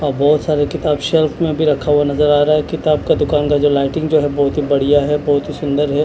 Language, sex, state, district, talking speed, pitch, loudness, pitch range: Hindi, male, Chandigarh, Chandigarh, 275 wpm, 150 Hz, -15 LUFS, 145-150 Hz